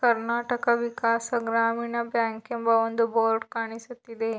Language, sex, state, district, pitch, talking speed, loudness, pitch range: Kannada, female, Karnataka, Belgaum, 230 Hz, 110 wpm, -26 LUFS, 225-235 Hz